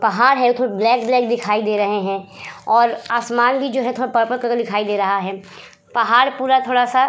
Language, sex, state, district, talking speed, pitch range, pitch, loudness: Hindi, female, Uttar Pradesh, Budaun, 210 wpm, 210-250 Hz, 235 Hz, -17 LUFS